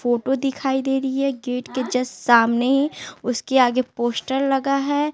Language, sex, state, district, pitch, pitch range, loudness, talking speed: Hindi, female, Bihar, West Champaran, 265 Hz, 245-270 Hz, -21 LUFS, 165 wpm